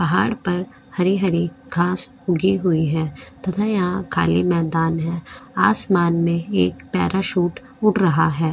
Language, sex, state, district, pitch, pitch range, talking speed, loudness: Hindi, female, Goa, North and South Goa, 175 Hz, 165-190 Hz, 135 wpm, -20 LUFS